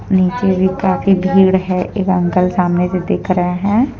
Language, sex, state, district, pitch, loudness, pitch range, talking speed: Hindi, female, Jharkhand, Deoghar, 185 Hz, -15 LUFS, 180-195 Hz, 180 wpm